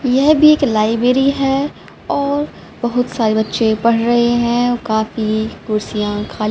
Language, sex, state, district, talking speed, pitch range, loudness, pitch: Hindi, female, Haryana, Rohtak, 145 wpm, 220-270 Hz, -16 LUFS, 240 Hz